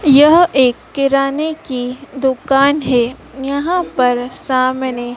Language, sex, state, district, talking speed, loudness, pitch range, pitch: Hindi, female, Madhya Pradesh, Dhar, 105 wpm, -15 LUFS, 255-285 Hz, 270 Hz